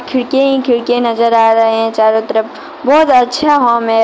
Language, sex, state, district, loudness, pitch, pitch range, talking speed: Hindi, female, Jharkhand, Deoghar, -11 LUFS, 240 Hz, 225-265 Hz, 180 wpm